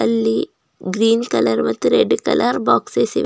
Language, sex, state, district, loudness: Kannada, female, Karnataka, Bidar, -17 LUFS